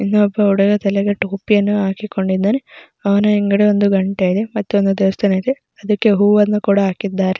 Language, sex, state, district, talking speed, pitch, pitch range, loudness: Kannada, female, Karnataka, Mysore, 170 wpm, 200 Hz, 195-210 Hz, -16 LUFS